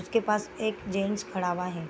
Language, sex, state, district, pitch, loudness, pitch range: Hindi, female, Bihar, Gopalganj, 195 Hz, -30 LUFS, 180-210 Hz